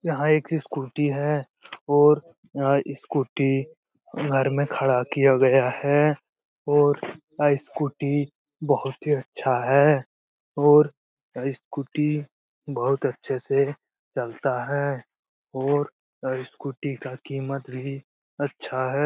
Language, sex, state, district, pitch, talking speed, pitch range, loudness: Hindi, male, Bihar, Lakhisarai, 140 Hz, 115 wpm, 135-145 Hz, -24 LUFS